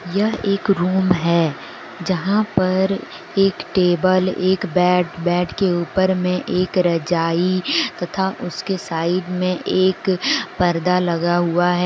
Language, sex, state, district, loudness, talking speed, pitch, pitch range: Hindi, female, Jharkhand, Deoghar, -19 LUFS, 125 wpm, 180 Hz, 175-190 Hz